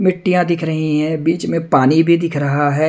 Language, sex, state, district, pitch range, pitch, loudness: Hindi, male, Punjab, Kapurthala, 150-170 Hz, 160 Hz, -16 LUFS